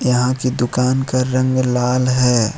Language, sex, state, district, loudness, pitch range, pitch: Hindi, male, Jharkhand, Ranchi, -17 LUFS, 125-130 Hz, 125 Hz